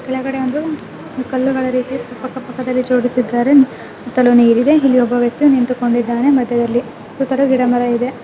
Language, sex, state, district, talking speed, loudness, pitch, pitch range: Kannada, female, Karnataka, Bellary, 130 wpm, -15 LUFS, 255 Hz, 245-265 Hz